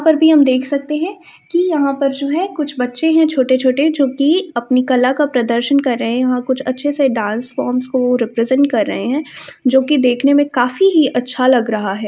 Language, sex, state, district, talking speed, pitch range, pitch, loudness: Hindi, female, Uttar Pradesh, Varanasi, 220 wpm, 250-295 Hz, 265 Hz, -15 LUFS